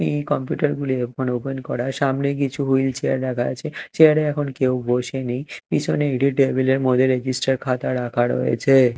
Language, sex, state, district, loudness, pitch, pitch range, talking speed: Bengali, male, Odisha, Malkangiri, -21 LUFS, 130 Hz, 125-140 Hz, 185 wpm